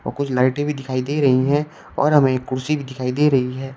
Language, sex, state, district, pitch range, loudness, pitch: Hindi, male, Uttar Pradesh, Shamli, 130-145 Hz, -19 LUFS, 135 Hz